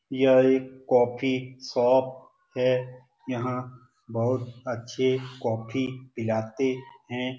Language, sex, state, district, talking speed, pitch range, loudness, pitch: Hindi, male, Bihar, Saran, 90 wpm, 125-130 Hz, -26 LUFS, 130 Hz